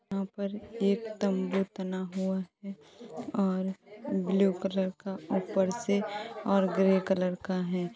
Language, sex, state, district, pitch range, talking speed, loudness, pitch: Hindi, female, Uttar Pradesh, Jalaun, 190-205 Hz, 130 wpm, -31 LUFS, 195 Hz